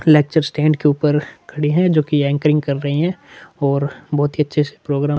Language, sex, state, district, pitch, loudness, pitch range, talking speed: Hindi, male, Chhattisgarh, Korba, 150 Hz, -18 LUFS, 145-155 Hz, 195 wpm